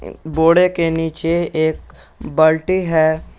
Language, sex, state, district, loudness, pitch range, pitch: Hindi, male, Jharkhand, Garhwa, -16 LUFS, 160-170 Hz, 160 Hz